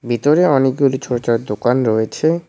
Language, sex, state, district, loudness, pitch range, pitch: Bengali, male, West Bengal, Cooch Behar, -16 LUFS, 120-145 Hz, 130 Hz